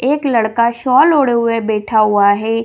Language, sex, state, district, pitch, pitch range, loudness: Hindi, female, Bihar, Jamui, 230 Hz, 215-250 Hz, -13 LUFS